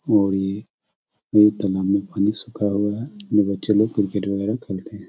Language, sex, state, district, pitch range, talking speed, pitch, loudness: Hindi, male, Bihar, Samastipur, 100-105 Hz, 175 wpm, 105 Hz, -21 LUFS